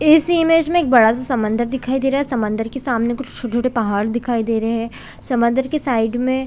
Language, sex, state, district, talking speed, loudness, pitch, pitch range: Hindi, female, Chhattisgarh, Bilaspur, 240 wpm, -18 LUFS, 245 Hz, 230-270 Hz